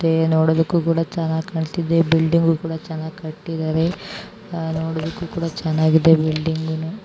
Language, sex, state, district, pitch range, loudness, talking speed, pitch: Kannada, female, Karnataka, Bijapur, 160-165 Hz, -20 LUFS, 100 wpm, 160 Hz